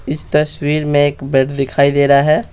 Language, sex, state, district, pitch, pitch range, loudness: Hindi, male, Bihar, Patna, 145 Hz, 140-150 Hz, -14 LUFS